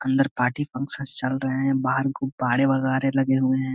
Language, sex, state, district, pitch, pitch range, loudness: Hindi, male, Bihar, Saharsa, 135 Hz, 130-135 Hz, -23 LUFS